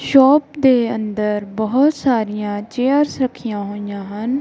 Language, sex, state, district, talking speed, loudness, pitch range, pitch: Punjabi, female, Punjab, Kapurthala, 135 wpm, -18 LUFS, 210-270 Hz, 230 Hz